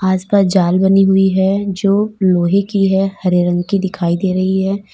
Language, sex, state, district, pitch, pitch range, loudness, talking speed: Hindi, female, Uttar Pradesh, Lalitpur, 190 Hz, 185-195 Hz, -14 LUFS, 205 wpm